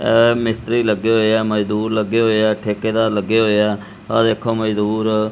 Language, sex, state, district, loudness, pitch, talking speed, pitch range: Punjabi, male, Punjab, Kapurthala, -17 LUFS, 110 Hz, 180 wpm, 105-115 Hz